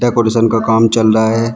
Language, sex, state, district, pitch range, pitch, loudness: Hindi, male, Uttar Pradesh, Shamli, 110-115 Hz, 115 Hz, -12 LUFS